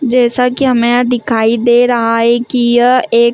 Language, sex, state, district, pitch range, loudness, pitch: Hindi, female, Chhattisgarh, Rajnandgaon, 235-250 Hz, -11 LUFS, 240 Hz